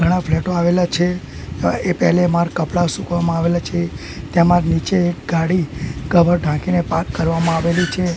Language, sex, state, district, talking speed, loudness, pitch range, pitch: Gujarati, male, Gujarat, Gandhinagar, 155 wpm, -18 LUFS, 165-175 Hz, 170 Hz